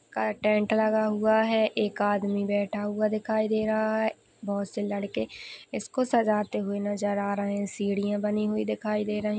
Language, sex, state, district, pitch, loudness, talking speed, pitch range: Hindi, female, Maharashtra, Pune, 210 Hz, -27 LUFS, 185 wpm, 205-220 Hz